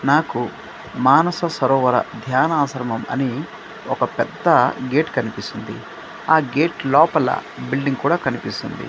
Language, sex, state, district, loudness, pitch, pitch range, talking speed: Telugu, male, Andhra Pradesh, Manyam, -19 LUFS, 135 Hz, 130-160 Hz, 110 wpm